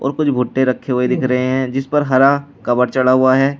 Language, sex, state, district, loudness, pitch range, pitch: Hindi, male, Uttar Pradesh, Shamli, -16 LUFS, 125-135 Hz, 130 Hz